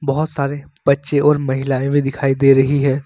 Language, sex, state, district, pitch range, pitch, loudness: Hindi, male, Jharkhand, Ranchi, 135-145 Hz, 140 Hz, -16 LUFS